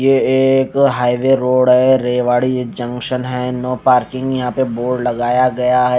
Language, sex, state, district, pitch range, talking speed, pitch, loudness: Hindi, male, Haryana, Charkhi Dadri, 125-130 Hz, 170 wpm, 125 Hz, -15 LUFS